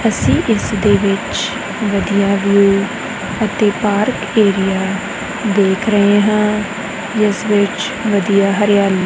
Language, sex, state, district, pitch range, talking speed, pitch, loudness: Punjabi, female, Punjab, Kapurthala, 200-210 Hz, 105 wpm, 205 Hz, -15 LUFS